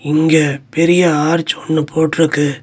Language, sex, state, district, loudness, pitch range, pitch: Tamil, male, Tamil Nadu, Nilgiris, -14 LUFS, 150-165 Hz, 160 Hz